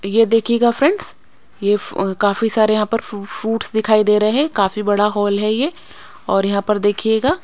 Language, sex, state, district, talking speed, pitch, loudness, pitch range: Hindi, female, Maharashtra, Mumbai Suburban, 175 wpm, 215 Hz, -17 LUFS, 205-225 Hz